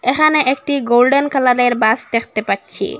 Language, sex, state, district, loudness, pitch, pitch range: Bengali, female, Assam, Hailakandi, -15 LUFS, 255 Hz, 245-280 Hz